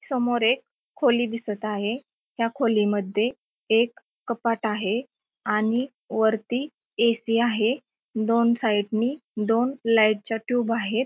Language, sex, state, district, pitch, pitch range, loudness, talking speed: Marathi, female, Maharashtra, Pune, 230 Hz, 220-245 Hz, -24 LUFS, 120 wpm